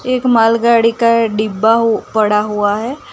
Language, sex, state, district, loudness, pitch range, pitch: Hindi, female, Gujarat, Gandhinagar, -13 LUFS, 215-235 Hz, 230 Hz